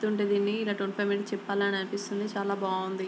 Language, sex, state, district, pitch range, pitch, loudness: Telugu, female, Andhra Pradesh, Guntur, 195-205 Hz, 200 Hz, -30 LUFS